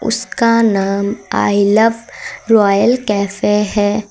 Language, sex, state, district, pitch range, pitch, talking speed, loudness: Hindi, female, Uttar Pradesh, Lucknow, 205-230 Hz, 210 Hz, 100 wpm, -14 LUFS